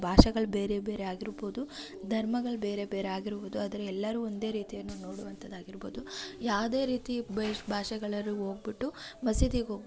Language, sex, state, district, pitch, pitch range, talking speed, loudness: Kannada, female, Karnataka, Raichur, 210 Hz, 200-225 Hz, 130 wpm, -33 LUFS